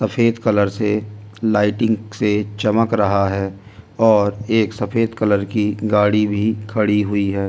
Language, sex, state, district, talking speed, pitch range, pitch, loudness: Hindi, male, Delhi, New Delhi, 150 wpm, 105-110 Hz, 105 Hz, -18 LUFS